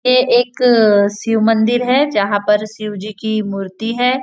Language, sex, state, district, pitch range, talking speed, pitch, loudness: Hindi, female, Maharashtra, Nagpur, 210-245 Hz, 170 wpm, 220 Hz, -15 LUFS